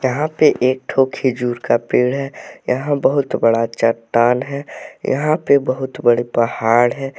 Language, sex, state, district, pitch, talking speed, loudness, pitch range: Hindi, male, Jharkhand, Deoghar, 130 Hz, 160 wpm, -17 LUFS, 120-140 Hz